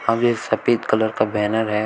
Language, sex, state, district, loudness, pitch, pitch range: Hindi, male, Uttar Pradesh, Shamli, -20 LUFS, 110 Hz, 105-115 Hz